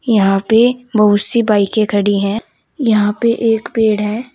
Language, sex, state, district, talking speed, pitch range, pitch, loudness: Hindi, female, Uttar Pradesh, Saharanpur, 165 wpm, 205-230 Hz, 215 Hz, -14 LUFS